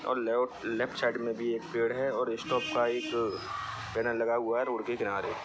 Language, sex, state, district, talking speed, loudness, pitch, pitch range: Hindi, male, Bihar, Saran, 210 wpm, -31 LUFS, 120 Hz, 115-125 Hz